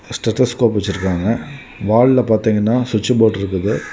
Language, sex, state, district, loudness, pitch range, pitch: Tamil, male, Tamil Nadu, Kanyakumari, -16 LUFS, 100-120 Hz, 110 Hz